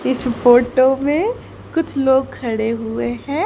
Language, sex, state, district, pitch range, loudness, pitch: Hindi, female, Haryana, Charkhi Dadri, 235-280 Hz, -17 LUFS, 260 Hz